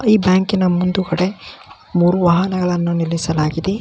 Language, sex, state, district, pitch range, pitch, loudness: Kannada, male, Karnataka, Belgaum, 170-190 Hz, 180 Hz, -17 LUFS